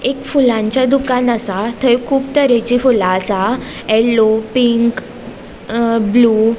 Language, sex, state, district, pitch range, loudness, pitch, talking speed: Konkani, female, Goa, North and South Goa, 220-255 Hz, -14 LUFS, 235 Hz, 125 wpm